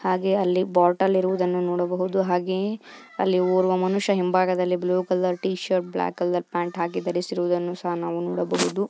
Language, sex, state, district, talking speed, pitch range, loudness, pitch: Kannada, female, Karnataka, Belgaum, 140 wpm, 175-185 Hz, -24 LUFS, 180 Hz